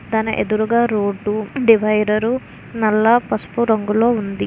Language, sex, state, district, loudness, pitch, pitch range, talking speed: Telugu, female, Andhra Pradesh, Visakhapatnam, -17 LUFS, 220 Hz, 215-235 Hz, 120 wpm